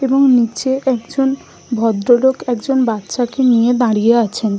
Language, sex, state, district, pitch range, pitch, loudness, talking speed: Bengali, female, West Bengal, Malda, 230-265 Hz, 245 Hz, -15 LUFS, 145 wpm